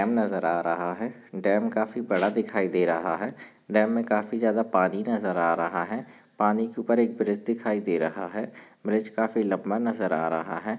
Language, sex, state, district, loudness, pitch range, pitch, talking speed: Hindi, male, Karnataka, Gulbarga, -26 LUFS, 90-115 Hz, 105 Hz, 205 wpm